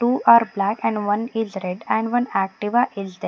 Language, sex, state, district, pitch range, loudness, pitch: English, female, Punjab, Pathankot, 195-235 Hz, -20 LUFS, 220 Hz